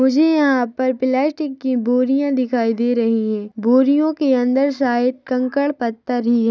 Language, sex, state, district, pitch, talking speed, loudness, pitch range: Hindi, female, Chhattisgarh, Rajnandgaon, 255 Hz, 165 wpm, -18 LUFS, 240-275 Hz